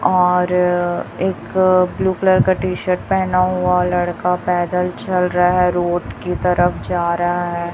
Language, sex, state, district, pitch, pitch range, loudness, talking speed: Hindi, female, Chhattisgarh, Raipur, 180 Hz, 175-185 Hz, -17 LUFS, 155 wpm